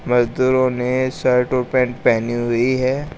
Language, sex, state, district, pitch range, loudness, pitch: Hindi, male, Uttar Pradesh, Shamli, 125-130 Hz, -18 LUFS, 125 Hz